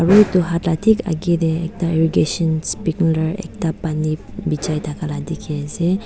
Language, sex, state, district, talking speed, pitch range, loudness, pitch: Nagamese, female, Nagaland, Dimapur, 110 wpm, 155-175 Hz, -19 LUFS, 165 Hz